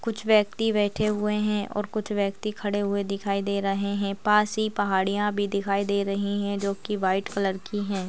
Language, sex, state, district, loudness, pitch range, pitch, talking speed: Hindi, female, Uttar Pradesh, Ghazipur, -26 LUFS, 200-210 Hz, 200 Hz, 210 wpm